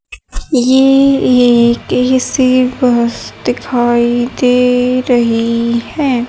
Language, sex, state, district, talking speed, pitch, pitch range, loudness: Hindi, male, Haryana, Charkhi Dadri, 75 wpm, 250 Hz, 235-255 Hz, -12 LUFS